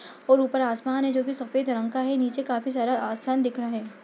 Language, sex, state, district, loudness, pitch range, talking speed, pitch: Hindi, female, Uttar Pradesh, Budaun, -26 LUFS, 240-265 Hz, 235 wpm, 260 Hz